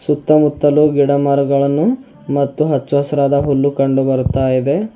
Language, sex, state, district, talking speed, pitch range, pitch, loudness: Kannada, male, Karnataka, Bidar, 110 wpm, 140-150 Hz, 140 Hz, -15 LUFS